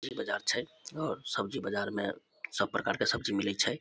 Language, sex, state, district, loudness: Maithili, male, Bihar, Samastipur, -33 LUFS